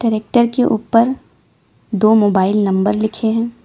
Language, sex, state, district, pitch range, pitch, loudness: Hindi, female, Uttar Pradesh, Lalitpur, 210-230 Hz, 220 Hz, -15 LUFS